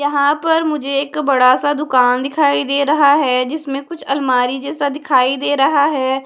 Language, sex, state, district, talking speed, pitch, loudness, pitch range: Hindi, female, Haryana, Charkhi Dadri, 180 wpm, 280 Hz, -15 LUFS, 265-295 Hz